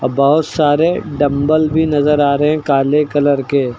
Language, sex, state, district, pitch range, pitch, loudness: Hindi, male, Uttar Pradesh, Lucknow, 140-150 Hz, 145 Hz, -14 LUFS